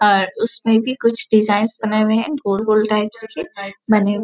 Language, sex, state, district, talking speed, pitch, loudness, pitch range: Hindi, female, Chhattisgarh, Bastar, 185 wpm, 215 Hz, -18 LUFS, 205-225 Hz